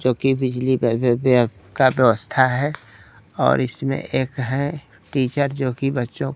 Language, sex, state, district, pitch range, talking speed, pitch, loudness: Hindi, male, Bihar, Kaimur, 120-135 Hz, 150 wpm, 130 Hz, -20 LUFS